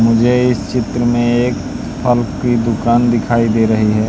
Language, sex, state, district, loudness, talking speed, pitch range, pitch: Hindi, male, Madhya Pradesh, Katni, -14 LUFS, 175 wpm, 115-120 Hz, 120 Hz